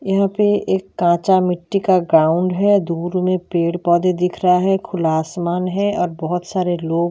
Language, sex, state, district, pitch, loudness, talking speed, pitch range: Hindi, female, Bihar, Gaya, 180 Hz, -18 LUFS, 185 wpm, 170-190 Hz